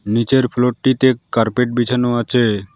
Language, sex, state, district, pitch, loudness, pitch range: Bengali, male, West Bengal, Alipurduar, 120 Hz, -16 LUFS, 115-125 Hz